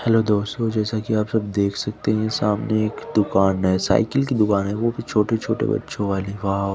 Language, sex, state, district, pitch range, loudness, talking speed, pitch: Hindi, male, Chandigarh, Chandigarh, 100-115 Hz, -21 LUFS, 215 wpm, 105 Hz